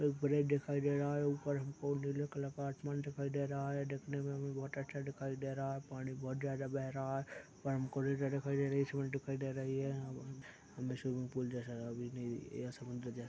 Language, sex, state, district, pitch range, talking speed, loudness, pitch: Hindi, male, Chhattisgarh, Balrampur, 130-140 Hz, 265 wpm, -40 LUFS, 140 Hz